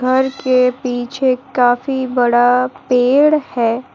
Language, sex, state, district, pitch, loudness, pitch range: Hindi, female, Jharkhand, Garhwa, 255 Hz, -15 LUFS, 245-260 Hz